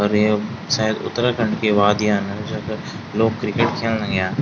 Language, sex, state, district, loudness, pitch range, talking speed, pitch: Garhwali, male, Uttarakhand, Tehri Garhwal, -20 LUFS, 105-110 Hz, 165 wpm, 110 Hz